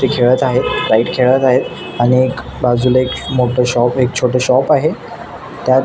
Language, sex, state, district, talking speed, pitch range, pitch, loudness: Marathi, male, Maharashtra, Nagpur, 175 wpm, 125-130 Hz, 125 Hz, -14 LUFS